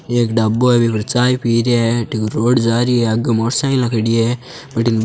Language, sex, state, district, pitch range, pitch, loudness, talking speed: Marwari, male, Rajasthan, Churu, 115-125 Hz, 120 Hz, -16 LUFS, 250 wpm